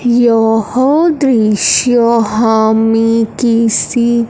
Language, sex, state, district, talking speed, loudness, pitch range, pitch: Hindi, female, Punjab, Fazilka, 55 wpm, -11 LUFS, 225-240 Hz, 230 Hz